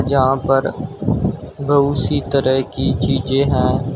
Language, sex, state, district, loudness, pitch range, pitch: Hindi, male, Uttar Pradesh, Shamli, -17 LUFS, 130-140 Hz, 135 Hz